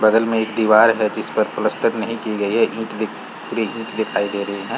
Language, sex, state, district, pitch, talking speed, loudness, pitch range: Hindi, male, Bihar, Saran, 110 Hz, 240 wpm, -19 LUFS, 105-115 Hz